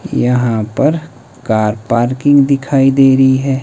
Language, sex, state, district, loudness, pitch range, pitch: Hindi, male, Himachal Pradesh, Shimla, -12 LUFS, 120-140 Hz, 130 Hz